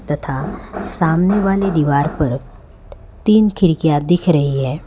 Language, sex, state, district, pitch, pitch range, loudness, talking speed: Hindi, male, Gujarat, Valsad, 155 Hz, 140-185 Hz, -16 LUFS, 125 wpm